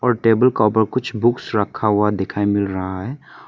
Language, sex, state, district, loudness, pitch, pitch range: Hindi, male, Arunachal Pradesh, Papum Pare, -19 LUFS, 110 Hz, 100-125 Hz